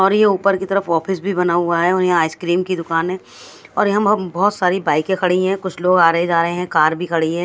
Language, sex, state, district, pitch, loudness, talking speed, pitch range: Hindi, female, Bihar, West Champaran, 180 Hz, -17 LUFS, 280 wpm, 170-190 Hz